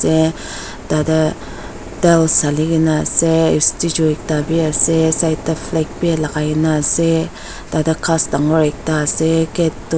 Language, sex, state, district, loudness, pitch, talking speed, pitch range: Nagamese, female, Nagaland, Dimapur, -15 LUFS, 160 Hz, 140 wpm, 155-165 Hz